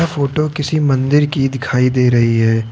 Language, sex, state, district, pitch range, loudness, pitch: Hindi, male, Uttar Pradesh, Lucknow, 125-150 Hz, -15 LUFS, 135 Hz